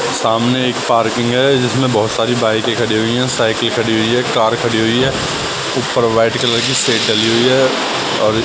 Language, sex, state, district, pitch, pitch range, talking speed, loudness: Hindi, male, Bihar, West Champaran, 115 Hz, 110-125 Hz, 200 wpm, -14 LUFS